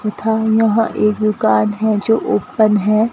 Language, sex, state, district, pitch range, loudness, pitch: Hindi, female, Rajasthan, Bikaner, 210-220 Hz, -15 LUFS, 215 Hz